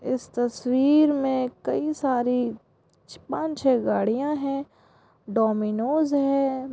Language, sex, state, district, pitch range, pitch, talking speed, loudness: Hindi, female, Goa, North and South Goa, 245-280 Hz, 260 Hz, 105 wpm, -24 LUFS